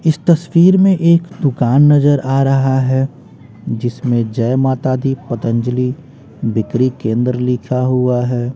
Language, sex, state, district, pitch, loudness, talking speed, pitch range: Hindi, female, Bihar, West Champaran, 130 Hz, -14 LUFS, 135 wpm, 120-145 Hz